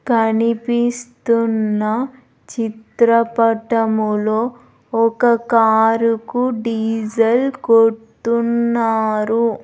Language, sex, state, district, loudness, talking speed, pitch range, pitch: Telugu, female, Andhra Pradesh, Sri Satya Sai, -17 LUFS, 45 wpm, 225-235 Hz, 230 Hz